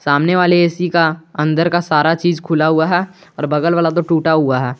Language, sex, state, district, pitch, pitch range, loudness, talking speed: Hindi, male, Jharkhand, Garhwa, 165 Hz, 155-175 Hz, -15 LUFS, 225 wpm